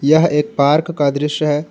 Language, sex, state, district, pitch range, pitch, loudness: Hindi, male, Jharkhand, Ranchi, 145-155 Hz, 150 Hz, -16 LUFS